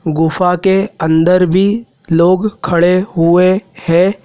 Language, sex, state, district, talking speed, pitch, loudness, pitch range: Hindi, male, Madhya Pradesh, Dhar, 115 wpm, 180 Hz, -12 LUFS, 170-190 Hz